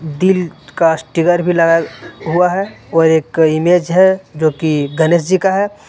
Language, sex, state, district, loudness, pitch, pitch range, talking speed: Hindi, male, Jharkhand, Deoghar, -14 LUFS, 170 Hz, 160-185 Hz, 175 wpm